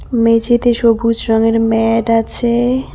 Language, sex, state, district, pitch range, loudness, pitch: Bengali, female, West Bengal, Cooch Behar, 225-240 Hz, -13 LUFS, 230 Hz